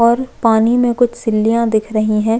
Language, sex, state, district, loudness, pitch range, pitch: Hindi, female, Chhattisgarh, Jashpur, -15 LUFS, 220-240 Hz, 225 Hz